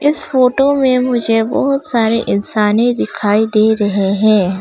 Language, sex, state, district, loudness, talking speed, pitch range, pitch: Hindi, female, Arunachal Pradesh, Longding, -14 LUFS, 145 wpm, 210-260 Hz, 225 Hz